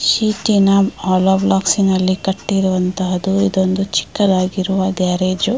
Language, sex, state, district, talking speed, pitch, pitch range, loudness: Kannada, female, Karnataka, Mysore, 95 wpm, 190 Hz, 185-195 Hz, -16 LUFS